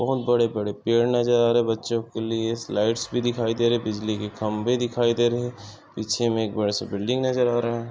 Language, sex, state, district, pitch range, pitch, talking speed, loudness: Hindi, male, Maharashtra, Chandrapur, 110-120 Hz, 115 Hz, 225 wpm, -24 LUFS